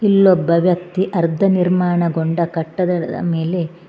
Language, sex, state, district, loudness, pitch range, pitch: Kannada, female, Karnataka, Bangalore, -17 LUFS, 170-180 Hz, 175 Hz